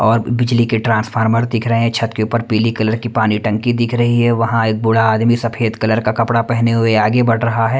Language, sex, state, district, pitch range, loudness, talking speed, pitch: Hindi, male, Delhi, New Delhi, 110-115 Hz, -15 LUFS, 245 wpm, 115 Hz